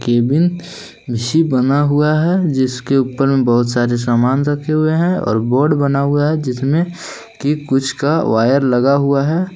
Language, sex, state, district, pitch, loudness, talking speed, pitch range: Hindi, male, Jharkhand, Palamu, 140 Hz, -15 LUFS, 155 wpm, 125-155 Hz